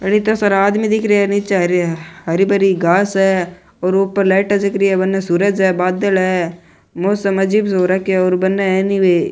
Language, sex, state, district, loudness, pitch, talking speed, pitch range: Rajasthani, male, Rajasthan, Nagaur, -15 LUFS, 195 Hz, 220 wpm, 180-200 Hz